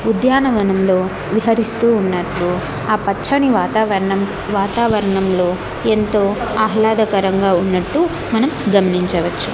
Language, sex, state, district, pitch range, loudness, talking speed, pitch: Telugu, female, Andhra Pradesh, Annamaya, 190-225 Hz, -16 LUFS, 75 wpm, 205 Hz